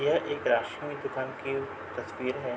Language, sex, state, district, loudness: Hindi, male, Uttar Pradesh, Budaun, -32 LUFS